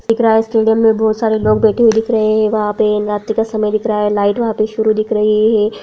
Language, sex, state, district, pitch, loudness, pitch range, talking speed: Hindi, female, Bihar, Araria, 220 Hz, -14 LUFS, 215-225 Hz, 280 wpm